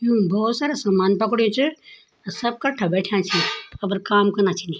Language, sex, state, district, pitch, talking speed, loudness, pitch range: Garhwali, female, Uttarakhand, Tehri Garhwal, 205 Hz, 175 wpm, -21 LUFS, 195-235 Hz